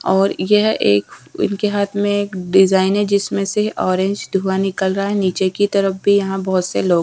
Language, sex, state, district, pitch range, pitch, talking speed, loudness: Hindi, female, Bihar, Patna, 190-205 Hz, 195 Hz, 215 wpm, -17 LUFS